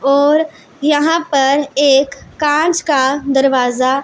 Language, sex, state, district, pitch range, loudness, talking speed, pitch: Hindi, female, Punjab, Pathankot, 270-300 Hz, -14 LUFS, 105 wpm, 280 Hz